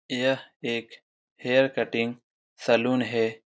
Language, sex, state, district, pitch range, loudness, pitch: Hindi, male, Bihar, Saran, 115-130 Hz, -26 LUFS, 120 Hz